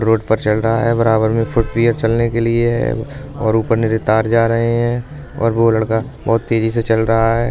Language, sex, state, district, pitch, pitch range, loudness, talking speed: Bundeli, male, Uttar Pradesh, Budaun, 115 Hz, 110-115 Hz, -16 LUFS, 230 wpm